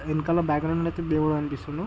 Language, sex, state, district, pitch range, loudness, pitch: Telugu, male, Andhra Pradesh, Guntur, 150-165 Hz, -26 LUFS, 155 Hz